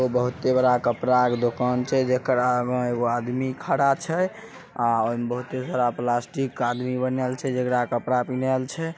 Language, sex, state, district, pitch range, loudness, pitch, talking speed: Maithili, male, Bihar, Samastipur, 120-130 Hz, -24 LUFS, 125 Hz, 105 wpm